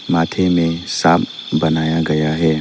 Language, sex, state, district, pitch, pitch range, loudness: Hindi, male, Arunachal Pradesh, Lower Dibang Valley, 80 Hz, 80-85 Hz, -16 LUFS